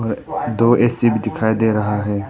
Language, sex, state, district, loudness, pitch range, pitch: Hindi, male, Arunachal Pradesh, Papum Pare, -17 LUFS, 105-115 Hz, 110 Hz